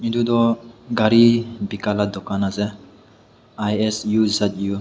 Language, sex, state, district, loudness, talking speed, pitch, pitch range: Nagamese, male, Nagaland, Dimapur, -20 LUFS, 110 wpm, 110 Hz, 105-115 Hz